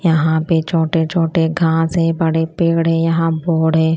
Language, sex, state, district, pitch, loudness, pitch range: Hindi, female, Punjab, Kapurthala, 165 Hz, -16 LUFS, 160-165 Hz